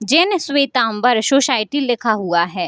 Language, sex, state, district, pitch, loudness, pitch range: Hindi, female, Bihar, Bhagalpur, 245 Hz, -16 LUFS, 215-280 Hz